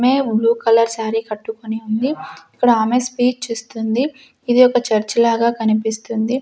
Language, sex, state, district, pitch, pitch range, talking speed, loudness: Telugu, female, Andhra Pradesh, Sri Satya Sai, 230 Hz, 220-250 Hz, 140 wpm, -17 LUFS